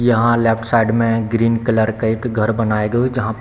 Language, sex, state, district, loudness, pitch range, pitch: Hindi, male, Bihar, Samastipur, -17 LUFS, 110-120 Hz, 115 Hz